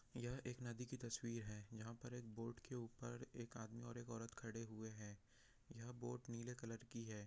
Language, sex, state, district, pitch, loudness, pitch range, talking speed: Hindi, male, Bihar, Jahanabad, 115 Hz, -52 LUFS, 115-120 Hz, 190 wpm